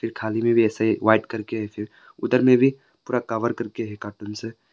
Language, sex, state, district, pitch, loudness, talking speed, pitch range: Hindi, male, Arunachal Pradesh, Longding, 110 Hz, -23 LUFS, 205 wpm, 110-120 Hz